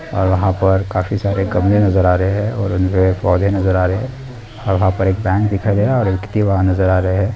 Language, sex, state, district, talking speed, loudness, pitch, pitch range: Hindi, male, Bihar, Purnia, 270 wpm, -16 LUFS, 95 Hz, 95-105 Hz